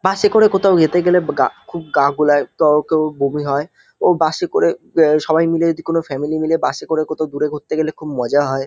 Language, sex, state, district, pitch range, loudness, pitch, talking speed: Bengali, male, West Bengal, North 24 Parganas, 150-170 Hz, -16 LUFS, 155 Hz, 215 wpm